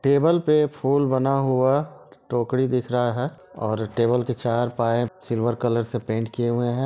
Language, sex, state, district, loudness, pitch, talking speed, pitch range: Hindi, male, Bihar, Sitamarhi, -23 LUFS, 125 Hz, 185 wpm, 120-135 Hz